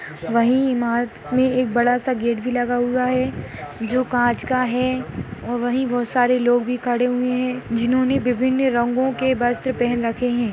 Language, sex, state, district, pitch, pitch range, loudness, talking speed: Hindi, female, Chhattisgarh, Bastar, 245 Hz, 240-255 Hz, -20 LUFS, 180 wpm